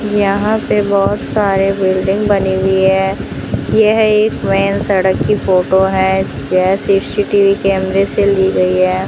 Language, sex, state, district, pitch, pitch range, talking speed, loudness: Hindi, female, Rajasthan, Bikaner, 195 Hz, 190-205 Hz, 145 wpm, -13 LUFS